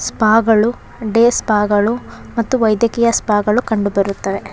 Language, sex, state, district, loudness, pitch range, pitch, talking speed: Kannada, female, Karnataka, Shimoga, -15 LUFS, 210-235 Hz, 220 Hz, 145 wpm